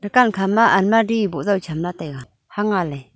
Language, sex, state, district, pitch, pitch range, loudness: Wancho, female, Arunachal Pradesh, Longding, 195 Hz, 155-210 Hz, -18 LUFS